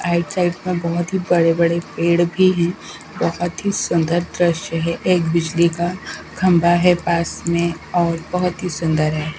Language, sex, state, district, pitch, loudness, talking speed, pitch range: Hindi, female, Bihar, Katihar, 170 Hz, -18 LUFS, 165 wpm, 170-180 Hz